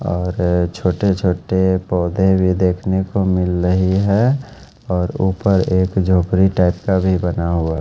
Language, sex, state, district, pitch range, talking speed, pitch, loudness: Hindi, male, Haryana, Jhajjar, 90-95 Hz, 145 wpm, 95 Hz, -17 LUFS